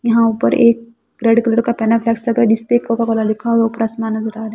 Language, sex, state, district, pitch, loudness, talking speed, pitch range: Hindi, female, Delhi, New Delhi, 230 Hz, -15 LUFS, 235 wpm, 225-235 Hz